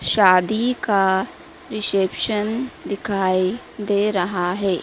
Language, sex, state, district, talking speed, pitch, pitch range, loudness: Hindi, female, Madhya Pradesh, Dhar, 85 wpm, 200 Hz, 190-220 Hz, -20 LUFS